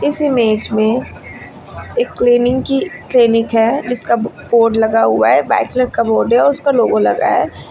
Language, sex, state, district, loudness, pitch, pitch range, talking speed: Hindi, female, Uttar Pradesh, Lucknow, -14 LUFS, 240 Hz, 225-260 Hz, 185 wpm